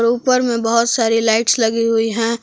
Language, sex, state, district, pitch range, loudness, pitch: Hindi, female, Jharkhand, Palamu, 225-235 Hz, -16 LUFS, 230 Hz